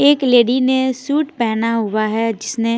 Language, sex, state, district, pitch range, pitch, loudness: Hindi, female, Bihar, Patna, 230-260 Hz, 240 Hz, -16 LUFS